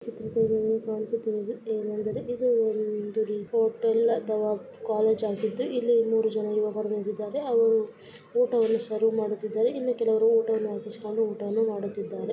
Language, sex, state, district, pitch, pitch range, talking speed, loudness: Kannada, male, Karnataka, Raichur, 220 Hz, 215-230 Hz, 115 wpm, -27 LUFS